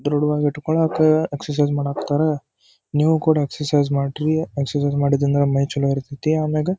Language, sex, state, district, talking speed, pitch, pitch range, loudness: Kannada, male, Karnataka, Dharwad, 125 wpm, 145 Hz, 140-155 Hz, -20 LUFS